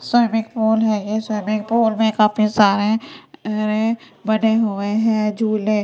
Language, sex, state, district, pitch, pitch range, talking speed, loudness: Hindi, female, Delhi, New Delhi, 220 Hz, 215-225 Hz, 145 wpm, -18 LUFS